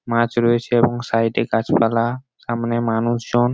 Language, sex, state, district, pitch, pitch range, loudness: Bengali, male, West Bengal, Jhargram, 120 Hz, 115-120 Hz, -19 LUFS